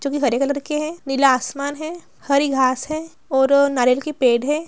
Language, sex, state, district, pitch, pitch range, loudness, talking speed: Hindi, female, Bihar, Gaya, 280 Hz, 265-300 Hz, -19 LUFS, 230 wpm